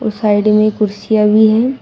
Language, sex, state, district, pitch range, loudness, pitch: Hindi, female, Uttar Pradesh, Shamli, 210-220 Hz, -12 LUFS, 215 Hz